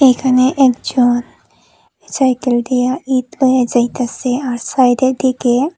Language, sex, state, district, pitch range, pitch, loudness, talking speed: Bengali, female, Tripura, Unakoti, 245-260 Hz, 255 Hz, -14 LUFS, 105 wpm